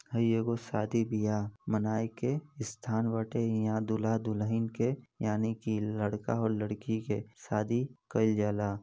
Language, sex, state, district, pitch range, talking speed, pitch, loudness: Bhojpuri, male, Uttar Pradesh, Deoria, 105-115 Hz, 145 wpm, 110 Hz, -32 LUFS